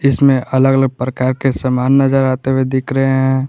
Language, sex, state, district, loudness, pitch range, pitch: Hindi, male, Jharkhand, Garhwa, -14 LUFS, 130-135 Hz, 130 Hz